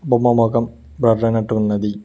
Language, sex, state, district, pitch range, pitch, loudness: Telugu, male, Telangana, Mahabubabad, 110-120 Hz, 115 Hz, -17 LUFS